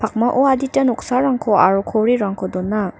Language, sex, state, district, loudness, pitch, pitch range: Garo, female, Meghalaya, North Garo Hills, -17 LUFS, 225 Hz, 200-260 Hz